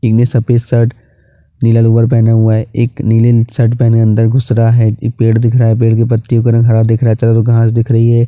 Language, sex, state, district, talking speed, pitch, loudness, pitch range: Hindi, male, Chhattisgarh, Bastar, 280 wpm, 115 Hz, -11 LUFS, 115-120 Hz